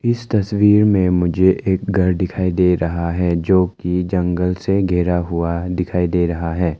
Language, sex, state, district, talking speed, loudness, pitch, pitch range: Hindi, male, Arunachal Pradesh, Lower Dibang Valley, 175 wpm, -17 LUFS, 90 Hz, 90-95 Hz